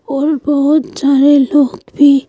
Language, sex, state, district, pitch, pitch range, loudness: Hindi, female, Madhya Pradesh, Bhopal, 285 Hz, 275-295 Hz, -12 LUFS